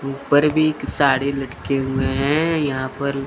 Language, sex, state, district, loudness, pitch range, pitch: Hindi, male, Chandigarh, Chandigarh, -20 LUFS, 135-145 Hz, 140 Hz